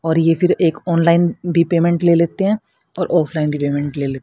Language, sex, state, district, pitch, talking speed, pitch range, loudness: Hindi, female, Haryana, Rohtak, 170 Hz, 225 wpm, 155-175 Hz, -17 LUFS